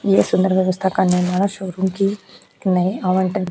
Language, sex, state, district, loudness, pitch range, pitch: Hindi, female, Uttar Pradesh, Jyotiba Phule Nagar, -19 LUFS, 180-190 Hz, 185 Hz